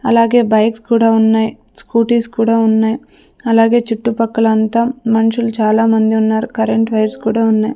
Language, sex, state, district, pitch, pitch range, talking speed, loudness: Telugu, female, Andhra Pradesh, Sri Satya Sai, 225 Hz, 220-230 Hz, 130 wpm, -13 LUFS